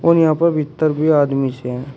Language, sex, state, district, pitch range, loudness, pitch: Hindi, male, Uttar Pradesh, Shamli, 135-160 Hz, -17 LUFS, 150 Hz